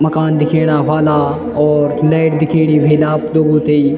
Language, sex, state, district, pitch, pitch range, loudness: Garhwali, male, Uttarakhand, Tehri Garhwal, 155 Hz, 150-155 Hz, -13 LUFS